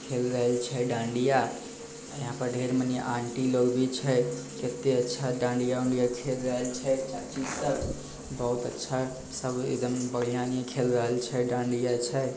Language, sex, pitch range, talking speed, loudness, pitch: Bhojpuri, male, 120-130 Hz, 140 wpm, -29 LUFS, 125 Hz